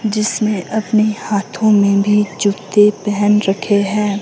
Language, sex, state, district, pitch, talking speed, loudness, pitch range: Hindi, female, Himachal Pradesh, Shimla, 210 Hz, 130 wpm, -15 LUFS, 200-215 Hz